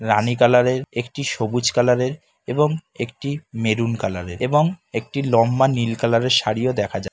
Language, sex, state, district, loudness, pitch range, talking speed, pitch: Bengali, male, West Bengal, Kolkata, -20 LUFS, 115-130 Hz, 145 wpm, 120 Hz